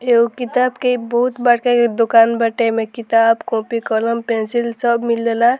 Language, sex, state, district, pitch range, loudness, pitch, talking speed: Bhojpuri, female, Bihar, Muzaffarpur, 230-240 Hz, -16 LUFS, 235 Hz, 160 wpm